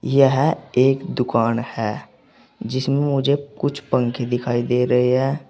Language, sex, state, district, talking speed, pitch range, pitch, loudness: Hindi, male, Uttar Pradesh, Saharanpur, 130 wpm, 120-140 Hz, 130 Hz, -20 LUFS